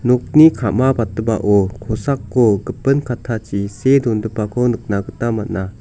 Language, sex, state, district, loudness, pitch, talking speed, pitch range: Garo, male, Meghalaya, South Garo Hills, -17 LUFS, 115 Hz, 105 wpm, 105-125 Hz